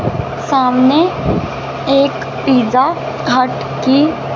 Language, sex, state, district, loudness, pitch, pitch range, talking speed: Hindi, female, Punjab, Fazilka, -14 LUFS, 270 Hz, 255-290 Hz, 70 wpm